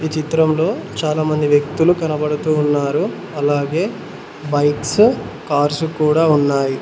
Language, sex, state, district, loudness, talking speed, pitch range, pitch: Telugu, male, Telangana, Mahabubabad, -17 LUFS, 105 wpm, 145-160 Hz, 150 Hz